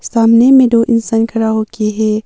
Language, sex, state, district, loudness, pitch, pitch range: Hindi, female, Arunachal Pradesh, Papum Pare, -11 LUFS, 225 Hz, 220-230 Hz